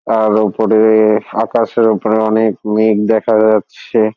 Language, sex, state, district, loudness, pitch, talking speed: Bengali, male, West Bengal, Dakshin Dinajpur, -13 LUFS, 110 Hz, 115 wpm